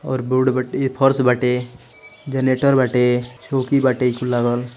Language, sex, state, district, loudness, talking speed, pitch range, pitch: Hindi, male, Uttar Pradesh, Ghazipur, -18 LUFS, 175 wpm, 125-135 Hz, 130 Hz